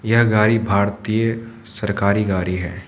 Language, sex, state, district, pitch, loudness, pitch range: Hindi, male, Manipur, Imphal West, 105 Hz, -19 LUFS, 100-115 Hz